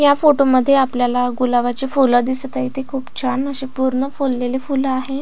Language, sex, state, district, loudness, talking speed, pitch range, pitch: Marathi, female, Maharashtra, Aurangabad, -17 LUFS, 185 wpm, 255-270 Hz, 265 Hz